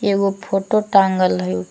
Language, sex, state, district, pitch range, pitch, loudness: Magahi, female, Jharkhand, Palamu, 180-200 Hz, 195 Hz, -18 LUFS